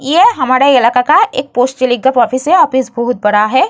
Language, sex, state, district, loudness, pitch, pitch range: Hindi, female, Bihar, Vaishali, -11 LUFS, 255 Hz, 245-265 Hz